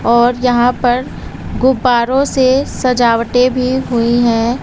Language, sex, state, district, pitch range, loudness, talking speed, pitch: Hindi, female, Uttar Pradesh, Lucknow, 240-255 Hz, -13 LUFS, 115 wpm, 250 Hz